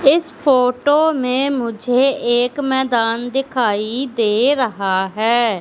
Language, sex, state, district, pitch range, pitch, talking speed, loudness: Hindi, female, Madhya Pradesh, Katni, 230-270 Hz, 250 Hz, 105 wpm, -17 LUFS